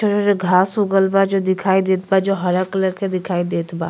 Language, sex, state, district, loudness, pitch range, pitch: Bhojpuri, female, Uttar Pradesh, Ghazipur, -18 LUFS, 185-195 Hz, 190 Hz